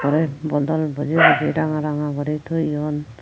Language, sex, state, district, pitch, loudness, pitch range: Chakma, female, Tripura, Unakoti, 150 Hz, -20 LUFS, 145-155 Hz